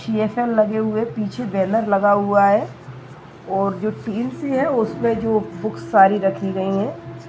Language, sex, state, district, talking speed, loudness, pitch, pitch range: Hindi, male, Bihar, Jamui, 125 wpm, -19 LUFS, 210 Hz, 195-225 Hz